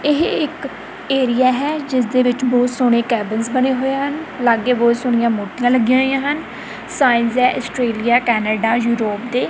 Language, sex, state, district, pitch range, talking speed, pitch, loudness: Punjabi, female, Punjab, Kapurthala, 235-260 Hz, 160 wpm, 250 Hz, -17 LUFS